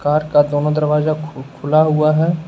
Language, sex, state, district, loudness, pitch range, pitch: Hindi, male, Uttar Pradesh, Lucknow, -16 LUFS, 145-155 Hz, 150 Hz